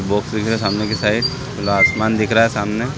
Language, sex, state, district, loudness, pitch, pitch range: Hindi, male, Chhattisgarh, Sarguja, -17 LUFS, 110 Hz, 105-115 Hz